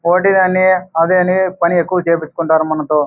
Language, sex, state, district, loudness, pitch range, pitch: Telugu, male, Andhra Pradesh, Anantapur, -14 LUFS, 160-185 Hz, 175 Hz